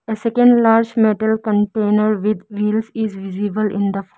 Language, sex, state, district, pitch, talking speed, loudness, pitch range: English, female, Arunachal Pradesh, Lower Dibang Valley, 215 Hz, 170 wpm, -17 LUFS, 205-220 Hz